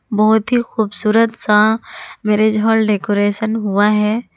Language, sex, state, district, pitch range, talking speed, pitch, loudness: Hindi, female, Jharkhand, Ranchi, 210-225 Hz, 125 wpm, 215 Hz, -15 LUFS